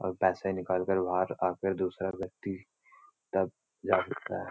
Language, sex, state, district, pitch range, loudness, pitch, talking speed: Hindi, male, Uttarakhand, Uttarkashi, 90-95 Hz, -32 LUFS, 95 Hz, 170 wpm